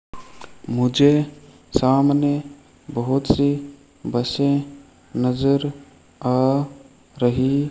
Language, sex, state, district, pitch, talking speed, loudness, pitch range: Hindi, male, Rajasthan, Bikaner, 140 Hz, 70 wpm, -21 LUFS, 130-145 Hz